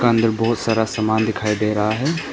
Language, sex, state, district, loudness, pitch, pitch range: Hindi, male, Arunachal Pradesh, Papum Pare, -19 LUFS, 110 Hz, 110-115 Hz